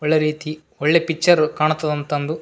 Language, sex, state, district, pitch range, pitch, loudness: Kannada, male, Karnataka, Raichur, 150-155 Hz, 155 Hz, -19 LUFS